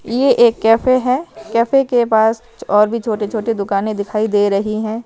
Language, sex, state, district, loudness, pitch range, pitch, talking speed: Hindi, female, Himachal Pradesh, Shimla, -15 LUFS, 215-235 Hz, 225 Hz, 180 wpm